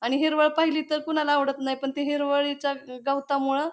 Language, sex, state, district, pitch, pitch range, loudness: Marathi, female, Maharashtra, Pune, 285 Hz, 275-305 Hz, -25 LUFS